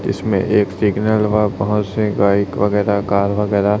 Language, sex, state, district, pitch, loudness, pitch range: Hindi, male, Chhattisgarh, Raipur, 105 Hz, -17 LUFS, 100-105 Hz